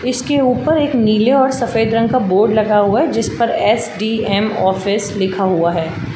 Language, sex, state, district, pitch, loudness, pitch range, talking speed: Hindi, female, Uttar Pradesh, Jalaun, 215 Hz, -15 LUFS, 200-240 Hz, 195 wpm